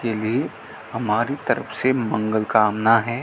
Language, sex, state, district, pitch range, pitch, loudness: Hindi, male, Rajasthan, Bikaner, 110-120 Hz, 110 Hz, -21 LUFS